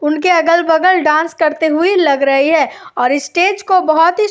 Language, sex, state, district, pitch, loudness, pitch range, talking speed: Hindi, female, Uttar Pradesh, Jyotiba Phule Nagar, 325 Hz, -12 LUFS, 300-360 Hz, 195 wpm